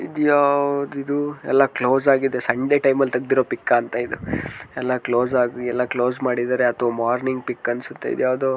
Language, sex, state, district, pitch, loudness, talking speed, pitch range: Kannada, male, Karnataka, Mysore, 130 Hz, -21 LUFS, 155 wpm, 125-135 Hz